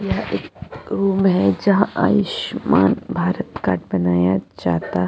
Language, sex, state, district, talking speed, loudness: Hindi, female, Chhattisgarh, Jashpur, 130 wpm, -19 LUFS